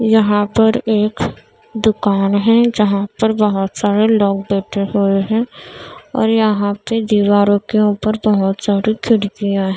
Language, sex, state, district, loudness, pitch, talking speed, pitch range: Hindi, female, Maharashtra, Mumbai Suburban, -15 LUFS, 210 Hz, 140 wpm, 200-220 Hz